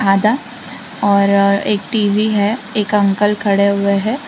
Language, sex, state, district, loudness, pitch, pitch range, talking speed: Hindi, female, Gujarat, Valsad, -15 LUFS, 205 Hz, 200-215 Hz, 140 wpm